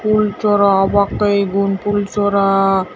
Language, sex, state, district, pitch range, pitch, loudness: Chakma, female, Tripura, Dhalai, 195-205 Hz, 200 Hz, -15 LUFS